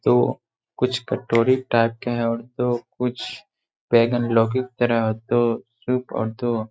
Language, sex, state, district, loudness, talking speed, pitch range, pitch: Hindi, male, Bihar, Gaya, -22 LUFS, 160 wpm, 115-125 Hz, 120 Hz